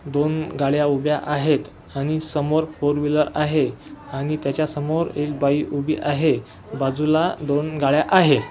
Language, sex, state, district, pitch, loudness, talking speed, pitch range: Marathi, male, Maharashtra, Washim, 150 Hz, -21 LUFS, 135 wpm, 145-155 Hz